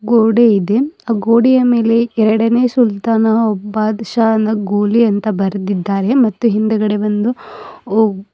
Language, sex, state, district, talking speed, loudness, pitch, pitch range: Kannada, female, Karnataka, Bidar, 110 wpm, -14 LUFS, 220 Hz, 210-235 Hz